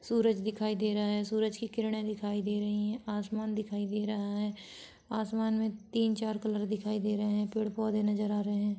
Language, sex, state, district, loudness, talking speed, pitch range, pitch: Hindi, female, Jharkhand, Sahebganj, -33 LUFS, 220 wpm, 210-220 Hz, 210 Hz